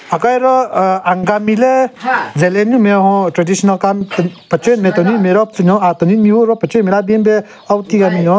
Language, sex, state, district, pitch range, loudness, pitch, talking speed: Rengma, male, Nagaland, Kohima, 185-220 Hz, -12 LUFS, 200 Hz, 220 wpm